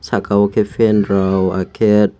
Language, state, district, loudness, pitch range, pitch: Kokborok, Tripura, West Tripura, -15 LUFS, 95-105 Hz, 100 Hz